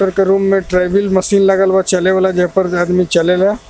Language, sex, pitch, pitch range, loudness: Bhojpuri, male, 190 Hz, 180-195 Hz, -13 LUFS